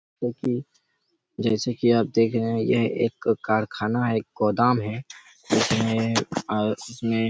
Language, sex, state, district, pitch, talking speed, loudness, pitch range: Hindi, male, Chhattisgarh, Raigarh, 115 Hz, 150 wpm, -24 LUFS, 110-120 Hz